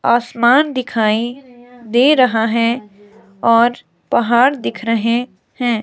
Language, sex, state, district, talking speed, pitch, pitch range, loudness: Hindi, female, Himachal Pradesh, Shimla, 105 wpm, 235 Hz, 230-245 Hz, -15 LUFS